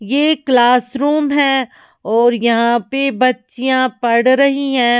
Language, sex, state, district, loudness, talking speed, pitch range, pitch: Hindi, female, Himachal Pradesh, Shimla, -14 LUFS, 130 wpm, 240-275 Hz, 255 Hz